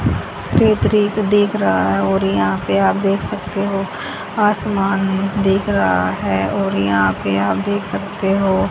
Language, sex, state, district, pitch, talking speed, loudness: Hindi, female, Haryana, Charkhi Dadri, 195 Hz, 165 wpm, -17 LUFS